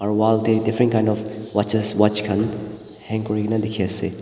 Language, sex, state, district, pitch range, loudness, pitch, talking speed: Nagamese, male, Nagaland, Dimapur, 105-110 Hz, -21 LUFS, 105 Hz, 185 wpm